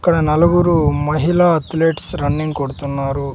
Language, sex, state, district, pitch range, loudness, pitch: Telugu, male, Andhra Pradesh, Sri Satya Sai, 145-170 Hz, -16 LUFS, 155 Hz